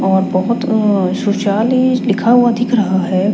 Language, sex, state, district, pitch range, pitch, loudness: Hindi, female, Chandigarh, Chandigarh, 195-240 Hz, 215 Hz, -14 LUFS